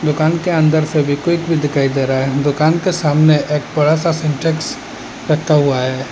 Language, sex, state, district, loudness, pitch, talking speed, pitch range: Hindi, male, Assam, Hailakandi, -15 LUFS, 150 Hz, 185 wpm, 145-160 Hz